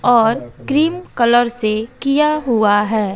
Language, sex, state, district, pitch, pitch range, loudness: Hindi, female, Bihar, West Champaran, 235 Hz, 220-275 Hz, -16 LUFS